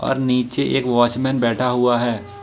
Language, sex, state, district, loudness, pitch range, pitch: Hindi, male, Jharkhand, Ranchi, -19 LUFS, 120-130 Hz, 125 Hz